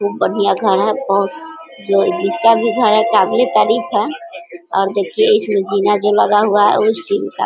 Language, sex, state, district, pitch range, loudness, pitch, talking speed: Hindi, female, Bihar, East Champaran, 200-230 Hz, -14 LUFS, 205 Hz, 185 wpm